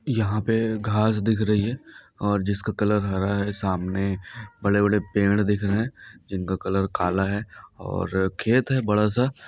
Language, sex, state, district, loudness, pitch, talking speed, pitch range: Hindi, male, Chhattisgarh, Balrampur, -24 LUFS, 105 Hz, 170 wpm, 100-110 Hz